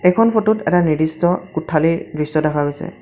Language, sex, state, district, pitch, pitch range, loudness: Assamese, male, Assam, Sonitpur, 165 Hz, 155-180 Hz, -17 LUFS